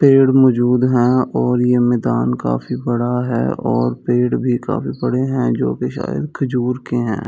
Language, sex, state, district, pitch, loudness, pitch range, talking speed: Hindi, male, Delhi, New Delhi, 125 Hz, -17 LUFS, 110-125 Hz, 175 wpm